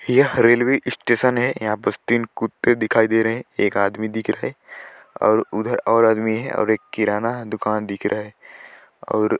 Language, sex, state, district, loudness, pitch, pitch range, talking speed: Hindi, male, Chhattisgarh, Sarguja, -20 LUFS, 110 Hz, 110-120 Hz, 200 wpm